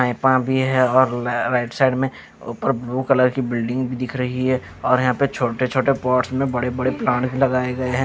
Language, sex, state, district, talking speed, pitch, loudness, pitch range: Hindi, male, Chandigarh, Chandigarh, 215 wpm, 130 Hz, -20 LUFS, 125-130 Hz